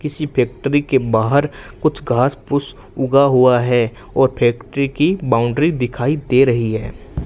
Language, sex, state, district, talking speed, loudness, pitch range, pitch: Hindi, male, Rajasthan, Bikaner, 140 wpm, -17 LUFS, 120-145 Hz, 130 Hz